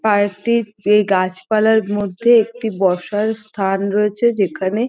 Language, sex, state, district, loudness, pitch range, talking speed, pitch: Bengali, female, West Bengal, North 24 Parganas, -17 LUFS, 195-220 Hz, 125 wpm, 210 Hz